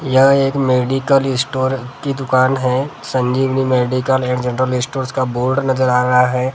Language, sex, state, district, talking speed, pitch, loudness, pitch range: Hindi, male, Maharashtra, Gondia, 175 wpm, 130 Hz, -16 LUFS, 125-135 Hz